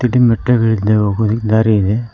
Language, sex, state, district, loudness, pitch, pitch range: Kannada, male, Karnataka, Koppal, -14 LUFS, 110 Hz, 110-115 Hz